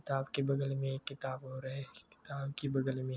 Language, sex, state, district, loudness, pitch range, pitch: Hindi, male, Rajasthan, Churu, -38 LUFS, 130-140 Hz, 135 Hz